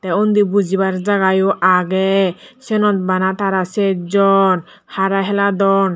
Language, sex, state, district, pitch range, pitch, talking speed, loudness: Chakma, female, Tripura, Dhalai, 190-200 Hz, 195 Hz, 130 wpm, -16 LUFS